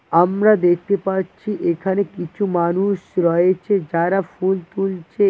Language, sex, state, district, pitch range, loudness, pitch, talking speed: Bengali, male, West Bengal, Cooch Behar, 175-195 Hz, -19 LUFS, 190 Hz, 115 wpm